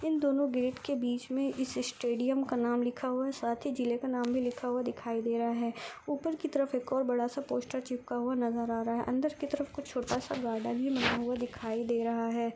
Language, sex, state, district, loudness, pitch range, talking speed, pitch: Hindi, female, Rajasthan, Churu, -33 LUFS, 235-265 Hz, 255 wpm, 250 Hz